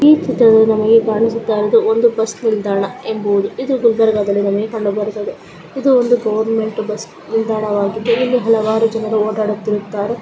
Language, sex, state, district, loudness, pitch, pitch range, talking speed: Kannada, female, Karnataka, Gulbarga, -15 LUFS, 220 Hz, 210-230 Hz, 135 wpm